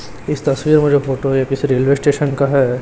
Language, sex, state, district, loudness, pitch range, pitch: Hindi, male, Chhattisgarh, Raipur, -16 LUFS, 135-145 Hz, 140 Hz